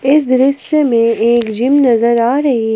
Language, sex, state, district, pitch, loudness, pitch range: Hindi, female, Jharkhand, Palamu, 245 Hz, -12 LUFS, 230-275 Hz